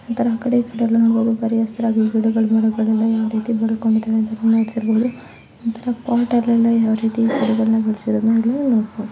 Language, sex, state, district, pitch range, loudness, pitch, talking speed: Kannada, female, Karnataka, Belgaum, 220-230 Hz, -18 LUFS, 225 Hz, 145 wpm